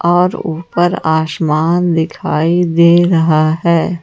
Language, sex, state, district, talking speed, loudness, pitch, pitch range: Hindi, female, Jharkhand, Ranchi, 105 wpm, -13 LUFS, 170 Hz, 160-175 Hz